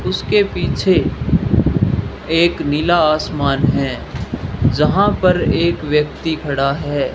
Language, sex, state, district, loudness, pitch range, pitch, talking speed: Hindi, male, Rajasthan, Bikaner, -16 LUFS, 145-165 Hz, 150 Hz, 100 wpm